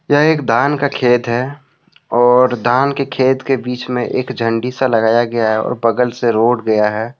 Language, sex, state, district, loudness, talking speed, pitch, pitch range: Hindi, male, Jharkhand, Deoghar, -15 LUFS, 210 wpm, 125 Hz, 115-135 Hz